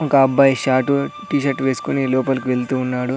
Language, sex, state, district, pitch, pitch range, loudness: Telugu, male, Andhra Pradesh, Sri Satya Sai, 135 Hz, 130-140 Hz, -18 LUFS